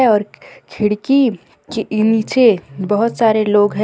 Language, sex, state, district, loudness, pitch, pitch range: Hindi, female, Jharkhand, Garhwa, -15 LUFS, 215 Hz, 210-235 Hz